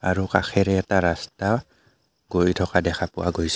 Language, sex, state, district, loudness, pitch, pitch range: Assamese, male, Assam, Kamrup Metropolitan, -23 LUFS, 90 Hz, 90-95 Hz